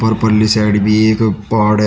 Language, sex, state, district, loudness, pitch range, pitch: Hindi, male, Uttar Pradesh, Shamli, -13 LUFS, 105-110 Hz, 110 Hz